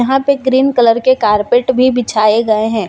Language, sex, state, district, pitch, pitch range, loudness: Hindi, female, Jharkhand, Deoghar, 245 Hz, 220-260 Hz, -12 LUFS